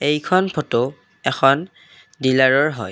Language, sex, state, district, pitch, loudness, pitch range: Assamese, male, Assam, Kamrup Metropolitan, 140 Hz, -18 LUFS, 130-155 Hz